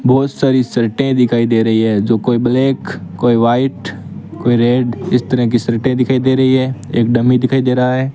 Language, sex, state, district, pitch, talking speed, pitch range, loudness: Hindi, male, Rajasthan, Bikaner, 125 Hz, 205 wpm, 120-130 Hz, -14 LUFS